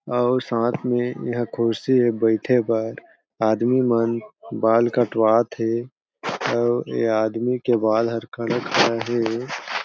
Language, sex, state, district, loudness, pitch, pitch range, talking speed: Chhattisgarhi, male, Chhattisgarh, Jashpur, -21 LUFS, 115 Hz, 115-120 Hz, 130 wpm